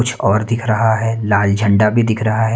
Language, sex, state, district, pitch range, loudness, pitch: Hindi, male, Haryana, Charkhi Dadri, 105-115 Hz, -15 LUFS, 110 Hz